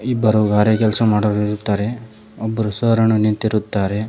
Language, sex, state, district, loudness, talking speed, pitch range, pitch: Kannada, male, Karnataka, Koppal, -18 LUFS, 130 wpm, 105-110 Hz, 110 Hz